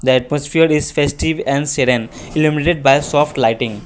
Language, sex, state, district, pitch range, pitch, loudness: English, male, Assam, Kamrup Metropolitan, 125-150 Hz, 140 Hz, -15 LUFS